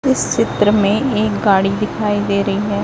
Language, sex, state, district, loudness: Hindi, female, Chhattisgarh, Raipur, -16 LUFS